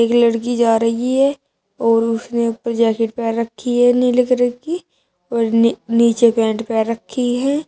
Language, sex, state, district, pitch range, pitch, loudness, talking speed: Hindi, female, Uttar Pradesh, Shamli, 230-245 Hz, 235 Hz, -17 LUFS, 170 wpm